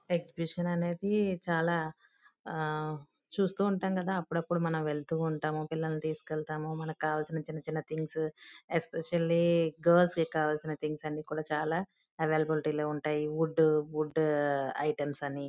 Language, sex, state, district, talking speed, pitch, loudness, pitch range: Telugu, female, Andhra Pradesh, Guntur, 120 wpm, 155 Hz, -32 LUFS, 155-170 Hz